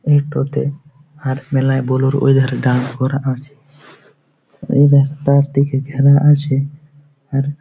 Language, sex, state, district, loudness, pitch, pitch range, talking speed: Bengali, male, West Bengal, Jhargram, -15 LUFS, 140 Hz, 135-145 Hz, 120 wpm